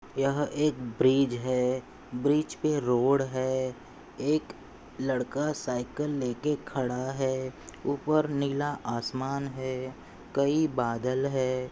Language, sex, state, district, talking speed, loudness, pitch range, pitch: Hindi, male, Maharashtra, Pune, 105 wpm, -29 LUFS, 130-145 Hz, 135 Hz